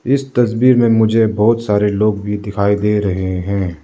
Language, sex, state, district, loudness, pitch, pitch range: Hindi, male, Arunachal Pradesh, Lower Dibang Valley, -15 LUFS, 105 Hz, 100-115 Hz